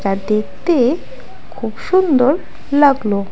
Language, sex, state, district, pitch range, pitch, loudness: Bengali, female, West Bengal, Alipurduar, 210-300 Hz, 260 Hz, -16 LUFS